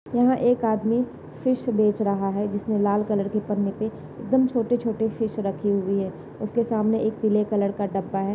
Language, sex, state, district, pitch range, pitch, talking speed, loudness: Hindi, female, Maharashtra, Nagpur, 200-225 Hz, 215 Hz, 200 wpm, -24 LUFS